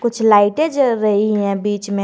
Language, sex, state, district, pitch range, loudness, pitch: Hindi, male, Jharkhand, Garhwa, 205-235 Hz, -16 LUFS, 210 Hz